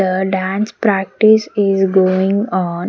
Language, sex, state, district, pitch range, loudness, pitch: English, female, Haryana, Jhajjar, 190-210 Hz, -15 LUFS, 190 Hz